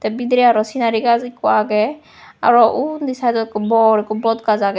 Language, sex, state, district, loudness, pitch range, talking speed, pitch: Chakma, female, Tripura, West Tripura, -16 LUFS, 215-245 Hz, 175 wpm, 230 Hz